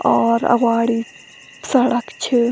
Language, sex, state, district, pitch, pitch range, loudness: Garhwali, female, Uttarakhand, Tehri Garhwal, 235 Hz, 230-245 Hz, -17 LUFS